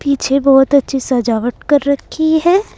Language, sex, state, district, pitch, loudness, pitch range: Hindi, female, Uttar Pradesh, Saharanpur, 280 Hz, -13 LUFS, 270-295 Hz